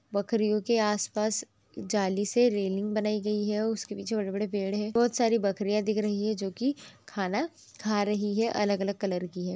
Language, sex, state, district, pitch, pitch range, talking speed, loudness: Hindi, female, Maharashtra, Nagpur, 210 Hz, 200-220 Hz, 200 wpm, -29 LUFS